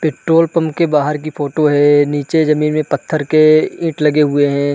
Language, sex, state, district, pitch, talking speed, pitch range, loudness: Hindi, male, Uttarakhand, Uttarkashi, 150 Hz, 200 wpm, 145-155 Hz, -14 LUFS